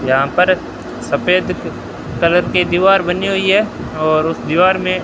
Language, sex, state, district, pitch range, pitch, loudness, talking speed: Hindi, male, Rajasthan, Bikaner, 165-185 Hz, 180 Hz, -15 LUFS, 155 wpm